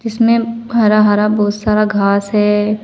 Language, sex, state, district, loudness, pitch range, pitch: Hindi, female, Uttar Pradesh, Saharanpur, -13 LUFS, 210-225 Hz, 210 Hz